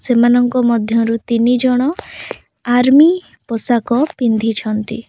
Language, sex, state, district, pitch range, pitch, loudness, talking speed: Odia, female, Odisha, Khordha, 230-255 Hz, 240 Hz, -14 LUFS, 85 wpm